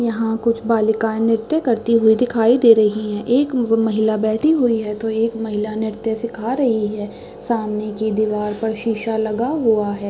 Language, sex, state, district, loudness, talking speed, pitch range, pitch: Hindi, female, Chhattisgarh, Raigarh, -18 LUFS, 180 wpm, 215-230 Hz, 225 Hz